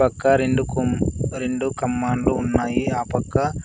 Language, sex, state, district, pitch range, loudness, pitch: Telugu, male, Andhra Pradesh, Sri Satya Sai, 125-130 Hz, -22 LUFS, 125 Hz